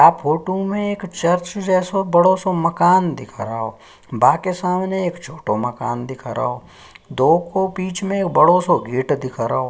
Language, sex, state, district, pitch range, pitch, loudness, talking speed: Hindi, male, Uttarakhand, Tehri Garhwal, 130-185 Hz, 175 Hz, -19 LUFS, 165 wpm